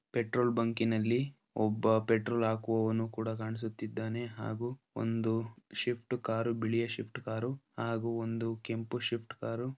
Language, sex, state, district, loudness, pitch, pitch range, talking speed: Kannada, male, Karnataka, Dharwad, -34 LUFS, 115 Hz, 110-120 Hz, 110 wpm